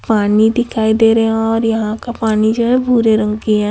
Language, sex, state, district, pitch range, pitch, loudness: Hindi, female, Chhattisgarh, Raipur, 215-225 Hz, 225 Hz, -14 LUFS